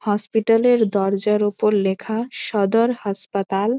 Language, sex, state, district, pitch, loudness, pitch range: Bengali, female, West Bengal, Malda, 210 Hz, -20 LUFS, 200-225 Hz